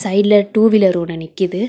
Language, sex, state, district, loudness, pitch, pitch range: Tamil, female, Tamil Nadu, Chennai, -14 LUFS, 200 Hz, 180-215 Hz